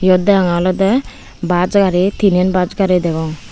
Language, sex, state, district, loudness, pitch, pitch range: Chakma, female, Tripura, Unakoti, -14 LUFS, 185 Hz, 175-195 Hz